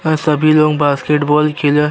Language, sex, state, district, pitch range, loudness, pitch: Bhojpuri, male, Uttar Pradesh, Deoria, 150-155 Hz, -13 LUFS, 150 Hz